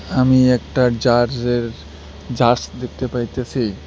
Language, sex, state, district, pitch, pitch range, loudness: Bengali, male, West Bengal, Cooch Behar, 120 Hz, 110-125 Hz, -18 LUFS